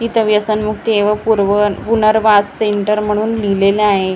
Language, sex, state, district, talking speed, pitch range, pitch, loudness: Marathi, female, Maharashtra, Gondia, 145 wpm, 205-215 Hz, 210 Hz, -14 LUFS